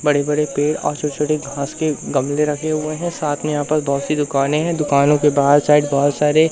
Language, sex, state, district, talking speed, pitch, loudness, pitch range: Hindi, male, Madhya Pradesh, Umaria, 240 wpm, 150 Hz, -18 LUFS, 145-155 Hz